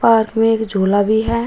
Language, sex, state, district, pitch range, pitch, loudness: Hindi, female, Uttar Pradesh, Shamli, 205-225 Hz, 220 Hz, -15 LUFS